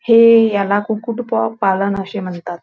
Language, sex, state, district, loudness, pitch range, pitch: Marathi, female, Maharashtra, Nagpur, -15 LUFS, 190-230 Hz, 200 Hz